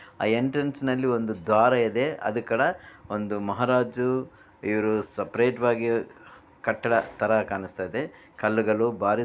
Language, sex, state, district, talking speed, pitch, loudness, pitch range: Kannada, male, Karnataka, Bellary, 115 wpm, 115 Hz, -26 LUFS, 105-125 Hz